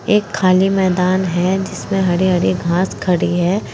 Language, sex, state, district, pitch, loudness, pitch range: Hindi, female, Uttar Pradesh, Saharanpur, 185 Hz, -16 LUFS, 180-190 Hz